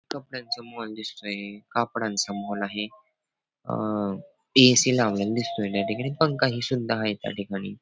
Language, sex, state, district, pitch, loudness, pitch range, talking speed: Marathi, male, Maharashtra, Pune, 110 Hz, -25 LUFS, 100-130 Hz, 140 wpm